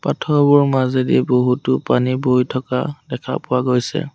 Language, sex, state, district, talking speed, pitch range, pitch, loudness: Assamese, male, Assam, Sonitpur, 130 wpm, 125-140 Hz, 130 Hz, -17 LUFS